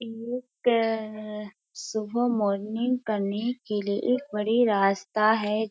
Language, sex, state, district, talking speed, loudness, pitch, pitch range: Hindi, female, Bihar, Kishanganj, 105 wpm, -26 LUFS, 220 Hz, 210-240 Hz